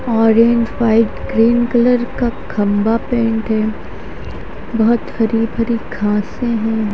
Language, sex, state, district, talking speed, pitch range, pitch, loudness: Hindi, female, Haryana, Charkhi Dadri, 110 wpm, 215-235 Hz, 225 Hz, -16 LUFS